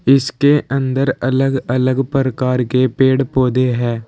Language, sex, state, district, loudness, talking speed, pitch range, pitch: Hindi, male, Uttar Pradesh, Saharanpur, -16 LUFS, 130 wpm, 125-135 Hz, 130 Hz